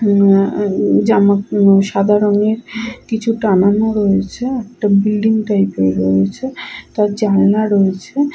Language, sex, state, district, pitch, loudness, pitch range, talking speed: Bengali, female, West Bengal, Purulia, 205 Hz, -14 LUFS, 195-220 Hz, 120 wpm